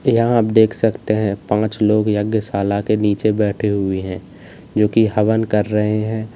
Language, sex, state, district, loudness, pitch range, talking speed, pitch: Hindi, male, Uttar Pradesh, Lalitpur, -17 LUFS, 105-110 Hz, 180 wpm, 105 Hz